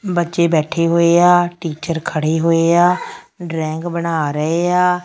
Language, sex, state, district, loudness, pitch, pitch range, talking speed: Punjabi, female, Punjab, Fazilka, -16 LUFS, 170 Hz, 160-175 Hz, 145 wpm